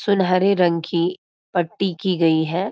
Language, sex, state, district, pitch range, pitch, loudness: Hindi, female, Uttarakhand, Uttarkashi, 170-190 Hz, 180 Hz, -20 LUFS